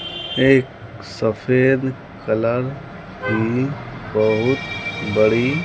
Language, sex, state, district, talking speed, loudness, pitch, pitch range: Hindi, male, Bihar, West Champaran, 75 wpm, -19 LUFS, 125 Hz, 110-135 Hz